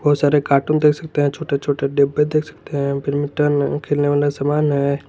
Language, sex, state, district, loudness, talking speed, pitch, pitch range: Hindi, male, Jharkhand, Garhwa, -18 LUFS, 190 wpm, 145 Hz, 140-150 Hz